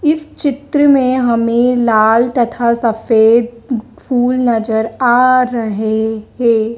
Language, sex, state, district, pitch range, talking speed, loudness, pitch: Hindi, female, Madhya Pradesh, Dhar, 225-255 Hz, 105 wpm, -13 LUFS, 235 Hz